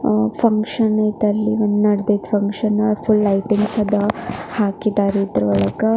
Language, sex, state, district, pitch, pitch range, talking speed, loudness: Kannada, female, Karnataka, Belgaum, 210 Hz, 200-215 Hz, 130 wpm, -18 LUFS